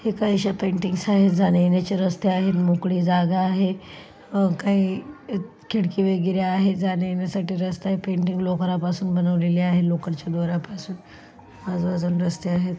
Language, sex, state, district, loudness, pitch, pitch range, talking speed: Marathi, female, Maharashtra, Solapur, -22 LUFS, 185 Hz, 175-195 Hz, 130 wpm